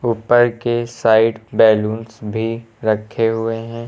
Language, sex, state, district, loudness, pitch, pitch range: Hindi, male, Uttar Pradesh, Lucknow, -17 LUFS, 115 Hz, 110-115 Hz